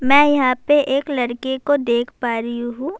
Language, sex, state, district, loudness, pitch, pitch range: Urdu, female, Bihar, Saharsa, -18 LUFS, 260 Hz, 240-285 Hz